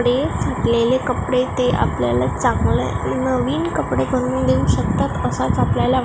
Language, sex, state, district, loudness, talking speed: Marathi, female, Maharashtra, Gondia, -19 LUFS, 140 wpm